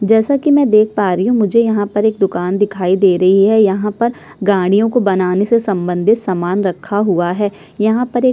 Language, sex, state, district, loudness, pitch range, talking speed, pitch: Hindi, female, Chhattisgarh, Sukma, -14 LUFS, 190-220 Hz, 225 wpm, 205 Hz